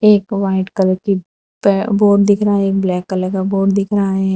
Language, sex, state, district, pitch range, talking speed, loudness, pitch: Hindi, female, Gujarat, Valsad, 190-200 Hz, 235 wpm, -15 LUFS, 195 Hz